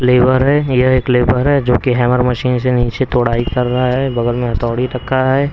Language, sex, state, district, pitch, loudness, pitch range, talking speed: Hindi, male, Haryana, Rohtak, 125 Hz, -14 LUFS, 125-130 Hz, 230 wpm